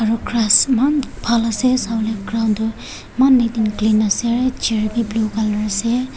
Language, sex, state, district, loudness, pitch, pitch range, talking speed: Nagamese, female, Nagaland, Kohima, -17 LUFS, 225 Hz, 215-245 Hz, 175 wpm